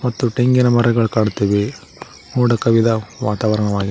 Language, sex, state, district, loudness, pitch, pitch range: Kannada, male, Karnataka, Koppal, -17 LUFS, 115 Hz, 105-120 Hz